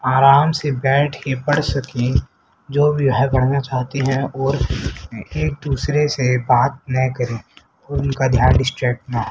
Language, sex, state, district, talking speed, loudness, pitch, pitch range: Hindi, male, Haryana, Rohtak, 155 wpm, -18 LUFS, 135 Hz, 125-140 Hz